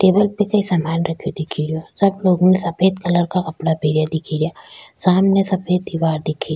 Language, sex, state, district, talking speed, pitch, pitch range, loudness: Rajasthani, female, Rajasthan, Nagaur, 200 wpm, 175 Hz, 160-190 Hz, -18 LUFS